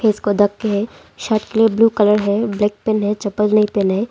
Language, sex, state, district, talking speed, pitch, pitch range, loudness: Hindi, female, Arunachal Pradesh, Longding, 235 wpm, 210 Hz, 205-220 Hz, -17 LUFS